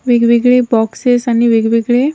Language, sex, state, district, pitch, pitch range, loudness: Marathi, female, Maharashtra, Washim, 240 Hz, 230-250 Hz, -12 LUFS